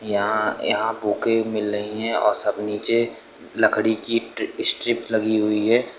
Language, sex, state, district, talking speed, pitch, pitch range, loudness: Hindi, male, Uttar Pradesh, Lucknow, 150 wpm, 110 Hz, 105-115 Hz, -20 LUFS